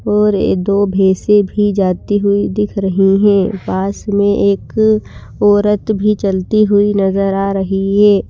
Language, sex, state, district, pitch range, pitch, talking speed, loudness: Hindi, female, Himachal Pradesh, Shimla, 195-210 Hz, 200 Hz, 145 wpm, -13 LUFS